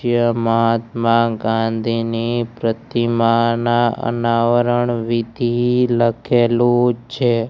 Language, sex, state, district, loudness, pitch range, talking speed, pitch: Gujarati, male, Gujarat, Gandhinagar, -17 LUFS, 115-120 Hz, 65 wpm, 115 Hz